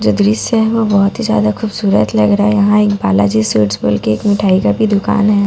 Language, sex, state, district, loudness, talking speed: Hindi, female, Bihar, Katihar, -13 LUFS, 250 wpm